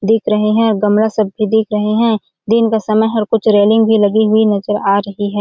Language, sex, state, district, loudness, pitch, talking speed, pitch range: Hindi, female, Chhattisgarh, Balrampur, -13 LUFS, 215 Hz, 245 wpm, 210-220 Hz